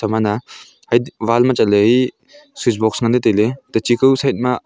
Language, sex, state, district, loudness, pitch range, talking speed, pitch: Wancho, male, Arunachal Pradesh, Longding, -16 LUFS, 110-130 Hz, 195 wpm, 120 Hz